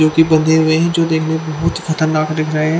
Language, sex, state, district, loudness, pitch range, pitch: Hindi, female, Haryana, Charkhi Dadri, -15 LUFS, 155-160 Hz, 160 Hz